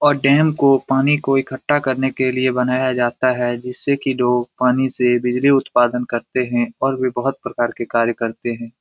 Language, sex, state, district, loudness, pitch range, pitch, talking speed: Hindi, male, Bihar, Lakhisarai, -18 LUFS, 120-135 Hz, 130 Hz, 195 wpm